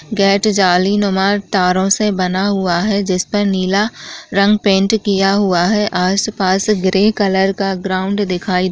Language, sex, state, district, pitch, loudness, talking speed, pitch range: Chhattisgarhi, female, Chhattisgarh, Jashpur, 195 Hz, -15 LUFS, 150 wpm, 185-205 Hz